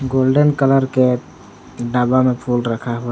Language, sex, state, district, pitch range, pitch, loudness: Hindi, male, Jharkhand, Palamu, 120-130 Hz, 125 Hz, -16 LUFS